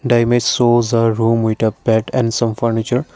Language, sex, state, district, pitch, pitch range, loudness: English, male, Assam, Kamrup Metropolitan, 115 Hz, 115-120 Hz, -16 LUFS